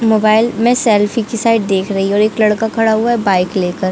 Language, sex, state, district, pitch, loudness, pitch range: Hindi, female, Chhattisgarh, Bilaspur, 215 Hz, -13 LUFS, 200-230 Hz